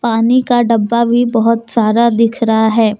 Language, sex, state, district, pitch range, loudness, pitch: Hindi, female, Jharkhand, Deoghar, 225-235 Hz, -12 LUFS, 230 Hz